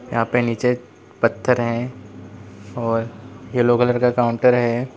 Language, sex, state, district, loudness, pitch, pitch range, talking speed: Hindi, male, Uttar Pradesh, Lalitpur, -19 LUFS, 120 Hz, 115-125 Hz, 135 wpm